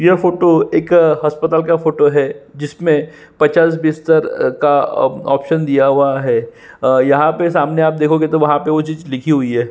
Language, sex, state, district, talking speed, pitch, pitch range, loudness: Hindi, male, Chhattisgarh, Sukma, 175 wpm, 155 Hz, 145-160 Hz, -14 LUFS